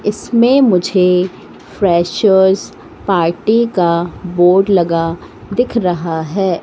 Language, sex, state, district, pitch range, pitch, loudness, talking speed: Hindi, female, Madhya Pradesh, Katni, 175-210 Hz, 185 Hz, -13 LUFS, 90 wpm